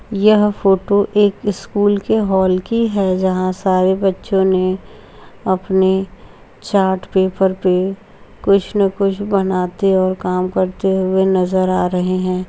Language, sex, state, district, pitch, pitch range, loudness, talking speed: Hindi, female, Uttar Pradesh, Jalaun, 190 Hz, 185-200 Hz, -16 LUFS, 135 wpm